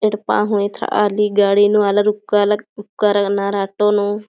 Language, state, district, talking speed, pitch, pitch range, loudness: Kurukh, Chhattisgarh, Jashpur, 170 wpm, 205 Hz, 205-210 Hz, -16 LUFS